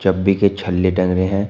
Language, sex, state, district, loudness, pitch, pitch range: Hindi, male, Uttar Pradesh, Shamli, -17 LUFS, 95 Hz, 90-100 Hz